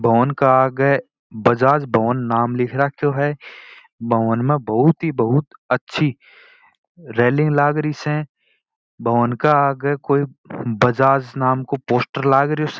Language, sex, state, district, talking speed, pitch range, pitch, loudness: Marwari, male, Rajasthan, Churu, 125 wpm, 125-150 Hz, 140 Hz, -18 LUFS